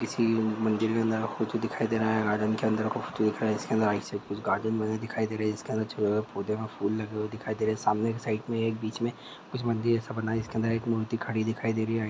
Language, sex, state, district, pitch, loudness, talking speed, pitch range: Hindi, male, Uttar Pradesh, Gorakhpur, 110 Hz, -29 LUFS, 300 wpm, 110-115 Hz